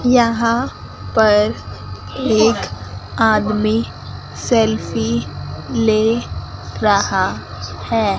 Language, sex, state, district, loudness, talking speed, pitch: Hindi, female, Chandigarh, Chandigarh, -17 LUFS, 60 wpm, 215 Hz